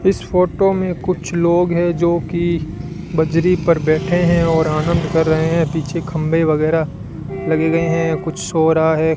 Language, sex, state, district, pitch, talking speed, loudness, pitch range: Hindi, male, Rajasthan, Bikaner, 165 Hz, 175 wpm, -17 LUFS, 160-170 Hz